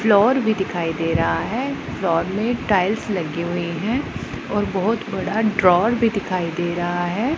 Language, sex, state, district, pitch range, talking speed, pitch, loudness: Hindi, female, Punjab, Pathankot, 175-220 Hz, 170 wpm, 195 Hz, -21 LUFS